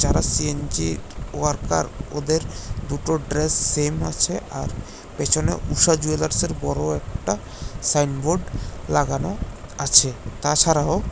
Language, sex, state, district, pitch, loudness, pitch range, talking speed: Bengali, male, Tripura, West Tripura, 140 Hz, -21 LUFS, 100-150 Hz, 95 wpm